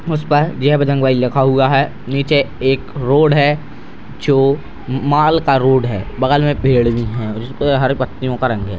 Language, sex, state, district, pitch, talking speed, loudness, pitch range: Hindi, male, Bihar, Purnia, 135 Hz, 185 wpm, -15 LUFS, 130-145 Hz